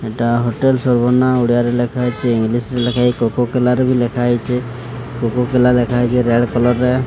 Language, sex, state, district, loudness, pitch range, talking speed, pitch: Odia, male, Odisha, Sambalpur, -16 LUFS, 120-125 Hz, 185 wpm, 120 Hz